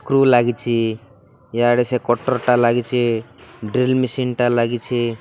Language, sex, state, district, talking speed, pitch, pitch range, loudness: Odia, male, Odisha, Malkangiri, 125 wpm, 120 Hz, 115-125 Hz, -18 LUFS